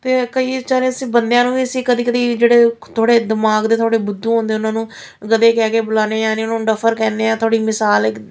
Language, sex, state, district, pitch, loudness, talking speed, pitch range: Punjabi, female, Punjab, Fazilka, 225 Hz, -16 LUFS, 230 wpm, 220-240 Hz